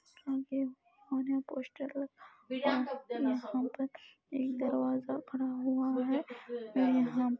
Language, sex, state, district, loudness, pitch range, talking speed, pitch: Hindi, female, Uttar Pradesh, Budaun, -35 LUFS, 255-275 Hz, 120 wpm, 265 Hz